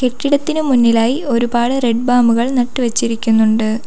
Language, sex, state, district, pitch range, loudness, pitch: Malayalam, female, Kerala, Kollam, 230-255 Hz, -14 LUFS, 240 Hz